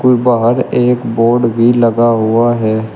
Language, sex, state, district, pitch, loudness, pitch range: Hindi, male, Uttar Pradesh, Shamli, 120 Hz, -12 LUFS, 115-120 Hz